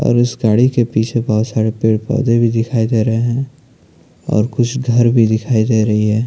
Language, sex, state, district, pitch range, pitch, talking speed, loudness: Hindi, male, Maharashtra, Chandrapur, 110-120 Hz, 115 Hz, 210 wpm, -15 LUFS